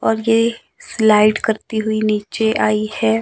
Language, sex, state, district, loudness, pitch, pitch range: Hindi, male, Himachal Pradesh, Shimla, -17 LUFS, 220 Hz, 215-225 Hz